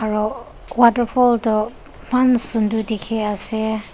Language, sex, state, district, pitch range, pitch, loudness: Nagamese, female, Nagaland, Dimapur, 215-240 Hz, 220 Hz, -19 LUFS